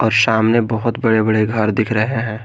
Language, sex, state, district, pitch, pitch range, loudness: Hindi, male, Jharkhand, Garhwa, 110 Hz, 110-115 Hz, -16 LUFS